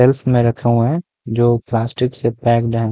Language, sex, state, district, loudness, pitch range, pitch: Hindi, male, Chhattisgarh, Rajnandgaon, -17 LUFS, 115-125 Hz, 120 Hz